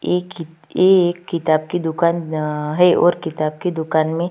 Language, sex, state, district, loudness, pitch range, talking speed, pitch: Hindi, female, Chhattisgarh, Kabirdham, -18 LUFS, 155-175 Hz, 195 wpm, 165 Hz